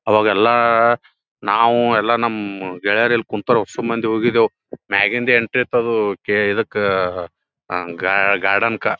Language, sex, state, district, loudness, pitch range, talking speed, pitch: Kannada, male, Karnataka, Gulbarga, -17 LUFS, 100-120 Hz, 120 wpm, 110 Hz